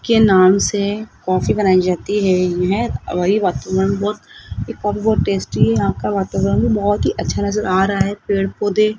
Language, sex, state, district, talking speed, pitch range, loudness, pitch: Hindi, female, Rajasthan, Jaipur, 160 wpm, 185-210 Hz, -17 LUFS, 200 Hz